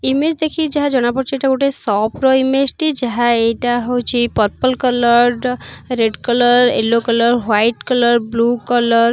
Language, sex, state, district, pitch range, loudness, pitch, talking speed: Odia, female, Odisha, Nuapada, 235-265 Hz, -15 LUFS, 245 Hz, 165 wpm